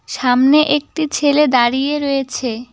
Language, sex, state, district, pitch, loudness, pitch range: Bengali, female, West Bengal, Cooch Behar, 275 Hz, -15 LUFS, 250-295 Hz